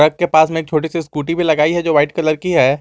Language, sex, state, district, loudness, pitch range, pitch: Hindi, male, Jharkhand, Garhwa, -15 LUFS, 150-165 Hz, 155 Hz